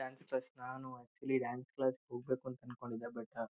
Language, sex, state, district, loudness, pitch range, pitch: Kannada, male, Karnataka, Shimoga, -42 LUFS, 120-130 Hz, 125 Hz